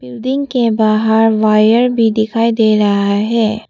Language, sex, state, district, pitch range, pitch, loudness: Hindi, female, Arunachal Pradesh, Papum Pare, 215-230 Hz, 220 Hz, -13 LUFS